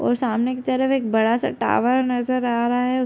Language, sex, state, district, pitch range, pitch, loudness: Hindi, female, Bihar, Gopalganj, 240-255 Hz, 250 Hz, -21 LUFS